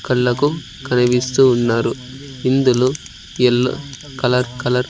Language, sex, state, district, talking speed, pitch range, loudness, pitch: Telugu, male, Andhra Pradesh, Sri Satya Sai, 100 wpm, 125-135 Hz, -17 LUFS, 125 Hz